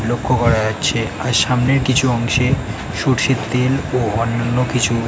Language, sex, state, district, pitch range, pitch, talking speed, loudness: Bengali, male, West Bengal, North 24 Parganas, 115-130 Hz, 125 Hz, 155 wpm, -17 LUFS